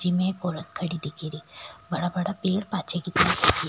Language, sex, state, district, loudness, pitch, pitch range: Rajasthani, female, Rajasthan, Churu, -26 LUFS, 180 Hz, 175-185 Hz